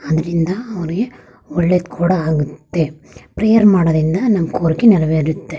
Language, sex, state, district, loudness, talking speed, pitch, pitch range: Kannada, female, Karnataka, Raichur, -16 LUFS, 105 wpm, 170 Hz, 160-190 Hz